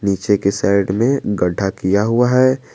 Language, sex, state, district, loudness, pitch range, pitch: Hindi, male, Jharkhand, Garhwa, -16 LUFS, 100-120 Hz, 100 Hz